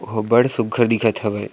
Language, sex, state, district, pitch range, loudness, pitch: Chhattisgarhi, male, Chhattisgarh, Sarguja, 110-120 Hz, -18 LUFS, 115 Hz